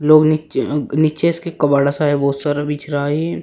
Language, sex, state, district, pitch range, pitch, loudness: Hindi, male, Uttar Pradesh, Shamli, 145-155 Hz, 150 Hz, -17 LUFS